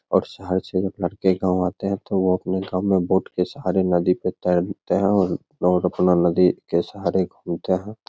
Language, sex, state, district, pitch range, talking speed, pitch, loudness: Hindi, male, Bihar, Begusarai, 90-95 Hz, 210 wpm, 90 Hz, -22 LUFS